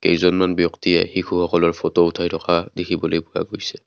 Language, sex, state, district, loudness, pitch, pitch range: Assamese, male, Assam, Kamrup Metropolitan, -19 LUFS, 85 Hz, 85-90 Hz